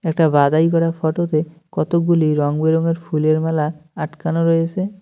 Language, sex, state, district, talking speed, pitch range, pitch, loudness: Bengali, male, West Bengal, Cooch Behar, 130 wpm, 155-165 Hz, 165 Hz, -18 LUFS